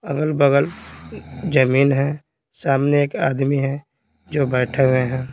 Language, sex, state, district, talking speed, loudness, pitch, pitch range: Hindi, male, Bihar, Patna, 125 wpm, -19 LUFS, 140 Hz, 135-145 Hz